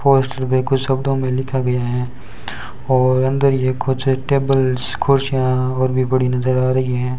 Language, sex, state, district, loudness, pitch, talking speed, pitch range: Hindi, male, Rajasthan, Bikaner, -18 LUFS, 130 Hz, 175 wpm, 130-135 Hz